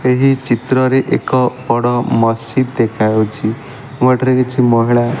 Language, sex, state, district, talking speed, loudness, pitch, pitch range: Odia, male, Odisha, Malkangiri, 140 wpm, -14 LUFS, 125 Hz, 115-130 Hz